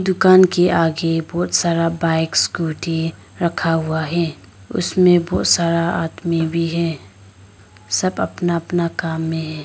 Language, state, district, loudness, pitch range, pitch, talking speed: Hindi, Arunachal Pradesh, Lower Dibang Valley, -18 LUFS, 160-175 Hz, 165 Hz, 135 wpm